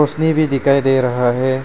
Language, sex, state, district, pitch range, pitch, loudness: Hindi, male, Arunachal Pradesh, Papum Pare, 130-150 Hz, 135 Hz, -15 LUFS